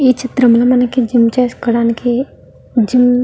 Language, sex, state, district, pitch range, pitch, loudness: Telugu, female, Andhra Pradesh, Guntur, 235-250 Hz, 245 Hz, -13 LUFS